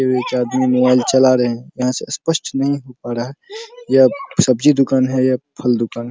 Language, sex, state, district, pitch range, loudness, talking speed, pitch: Hindi, male, Bihar, Araria, 125-140 Hz, -16 LUFS, 215 wpm, 130 Hz